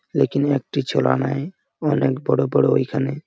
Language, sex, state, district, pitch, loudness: Bengali, male, West Bengal, Malda, 135 Hz, -20 LUFS